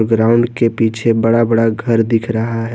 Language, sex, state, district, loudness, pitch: Hindi, male, Jharkhand, Garhwa, -14 LUFS, 115 Hz